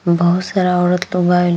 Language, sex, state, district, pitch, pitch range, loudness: Bhojpuri, female, Bihar, East Champaran, 180 Hz, 175-180 Hz, -15 LUFS